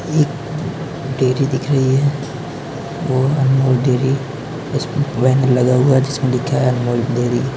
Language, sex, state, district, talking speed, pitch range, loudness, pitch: Hindi, male, Uttar Pradesh, Varanasi, 135 wpm, 130-140 Hz, -17 LUFS, 135 Hz